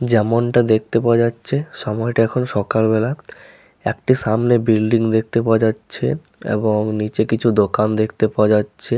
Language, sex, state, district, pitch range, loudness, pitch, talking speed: Bengali, male, West Bengal, Malda, 110-115 Hz, -18 LUFS, 110 Hz, 135 wpm